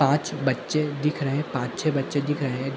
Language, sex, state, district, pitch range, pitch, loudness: Hindi, male, Uttarakhand, Tehri Garhwal, 135-150 Hz, 140 Hz, -26 LUFS